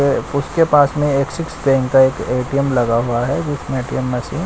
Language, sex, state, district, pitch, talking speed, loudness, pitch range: Hindi, male, Bihar, West Champaran, 140 Hz, 175 wpm, -17 LUFS, 130-145 Hz